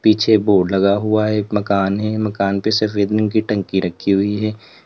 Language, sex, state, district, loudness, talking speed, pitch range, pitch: Hindi, male, Uttar Pradesh, Lalitpur, -17 LUFS, 200 wpm, 100-110 Hz, 105 Hz